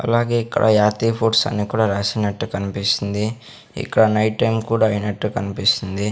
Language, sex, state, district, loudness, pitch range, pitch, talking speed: Telugu, male, Andhra Pradesh, Sri Satya Sai, -19 LUFS, 105-115 Hz, 110 Hz, 135 wpm